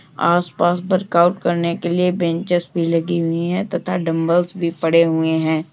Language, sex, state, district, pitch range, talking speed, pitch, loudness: Hindi, female, Uttar Pradesh, Jalaun, 165-175 Hz, 180 wpm, 170 Hz, -18 LUFS